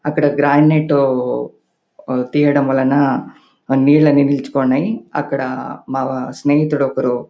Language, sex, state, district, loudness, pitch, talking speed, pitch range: Telugu, male, Andhra Pradesh, Anantapur, -16 LUFS, 140 Hz, 80 wpm, 130-145 Hz